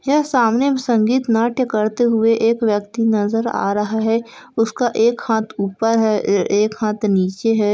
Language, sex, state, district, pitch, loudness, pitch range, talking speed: Hindi, female, Chhattisgarh, Kabirdham, 225 Hz, -18 LUFS, 215-235 Hz, 170 wpm